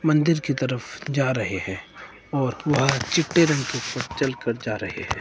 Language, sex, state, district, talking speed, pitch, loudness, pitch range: Hindi, male, Himachal Pradesh, Shimla, 185 wpm, 135 Hz, -24 LUFS, 120-150 Hz